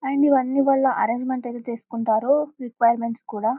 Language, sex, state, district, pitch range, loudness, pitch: Telugu, female, Telangana, Karimnagar, 230-270 Hz, -22 LUFS, 245 Hz